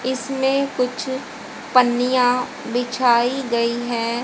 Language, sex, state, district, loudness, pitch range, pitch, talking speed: Hindi, female, Haryana, Jhajjar, -20 LUFS, 240-260 Hz, 250 Hz, 85 wpm